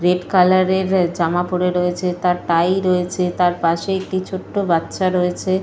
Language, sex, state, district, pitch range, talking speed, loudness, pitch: Bengali, female, Jharkhand, Jamtara, 175-185 Hz, 170 wpm, -18 LUFS, 180 Hz